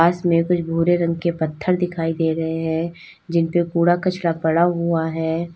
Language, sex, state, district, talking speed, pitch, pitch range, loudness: Hindi, female, Uttar Pradesh, Lalitpur, 185 wpm, 170 Hz, 165-175 Hz, -20 LUFS